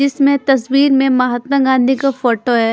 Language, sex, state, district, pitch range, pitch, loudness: Hindi, female, Chhattisgarh, Raipur, 245-275 Hz, 265 Hz, -14 LUFS